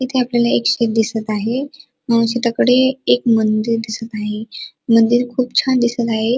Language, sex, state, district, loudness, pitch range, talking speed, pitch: Marathi, female, Maharashtra, Dhule, -16 LUFS, 220-250 Hz, 160 wpm, 230 Hz